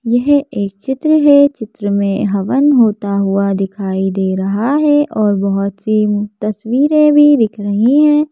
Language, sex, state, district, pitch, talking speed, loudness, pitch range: Hindi, female, Madhya Pradesh, Bhopal, 215 Hz, 150 wpm, -13 LUFS, 200-285 Hz